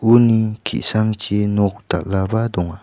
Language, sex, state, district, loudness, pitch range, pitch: Garo, male, Meghalaya, West Garo Hills, -18 LUFS, 95-110 Hz, 105 Hz